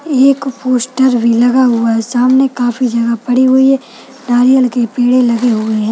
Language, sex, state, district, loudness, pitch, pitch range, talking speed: Hindi, female, Chhattisgarh, Balrampur, -11 LUFS, 250 Hz, 235-260 Hz, 190 wpm